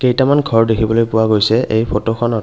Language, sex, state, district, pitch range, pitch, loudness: Assamese, male, Assam, Kamrup Metropolitan, 110-120 Hz, 115 Hz, -14 LUFS